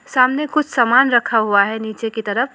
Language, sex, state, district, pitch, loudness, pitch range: Hindi, female, West Bengal, Alipurduar, 240 Hz, -16 LUFS, 220-260 Hz